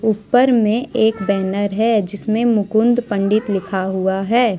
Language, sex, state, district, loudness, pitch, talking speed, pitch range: Hindi, male, Jharkhand, Deoghar, -17 LUFS, 215 Hz, 155 wpm, 195-230 Hz